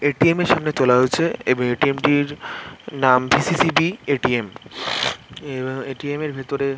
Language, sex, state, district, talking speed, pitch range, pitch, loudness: Bengali, male, West Bengal, Jhargram, 140 wpm, 130-155 Hz, 140 Hz, -20 LUFS